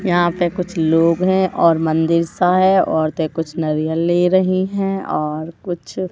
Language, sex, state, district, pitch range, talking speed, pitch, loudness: Hindi, female, Madhya Pradesh, Katni, 160-185 Hz, 165 wpm, 175 Hz, -17 LUFS